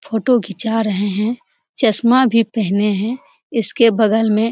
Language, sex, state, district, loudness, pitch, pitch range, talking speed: Hindi, female, Bihar, Jamui, -16 LUFS, 225 Hz, 210-235 Hz, 160 wpm